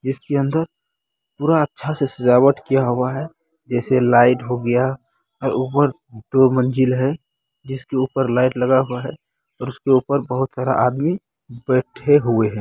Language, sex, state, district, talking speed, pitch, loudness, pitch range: Hindi, male, Bihar, Muzaffarpur, 155 wpm, 130 Hz, -19 LUFS, 125-140 Hz